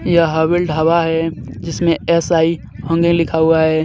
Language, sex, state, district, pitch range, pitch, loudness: Hindi, male, Jharkhand, Deoghar, 160-170 Hz, 165 Hz, -15 LUFS